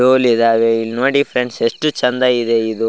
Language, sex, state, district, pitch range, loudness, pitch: Kannada, male, Karnataka, Raichur, 115-130 Hz, -15 LUFS, 120 Hz